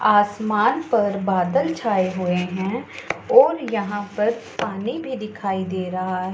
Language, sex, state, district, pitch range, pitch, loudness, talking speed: Hindi, female, Punjab, Pathankot, 185-220 Hz, 205 Hz, -22 LUFS, 135 wpm